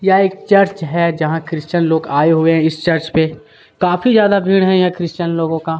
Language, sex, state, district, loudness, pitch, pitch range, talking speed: Hindi, male, Chhattisgarh, Kabirdham, -15 LUFS, 170 Hz, 160-190 Hz, 205 wpm